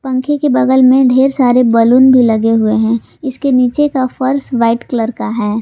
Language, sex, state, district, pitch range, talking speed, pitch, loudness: Hindi, female, Jharkhand, Palamu, 230-265 Hz, 200 wpm, 250 Hz, -11 LUFS